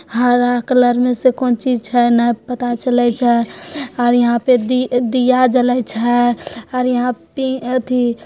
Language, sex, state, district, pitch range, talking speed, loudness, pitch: Hindi, female, Bihar, Begusarai, 240-255 Hz, 165 wpm, -15 LUFS, 245 Hz